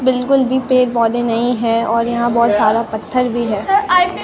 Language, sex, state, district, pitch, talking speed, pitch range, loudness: Hindi, male, Bihar, Katihar, 240 Hz, 185 wpm, 230-255 Hz, -15 LUFS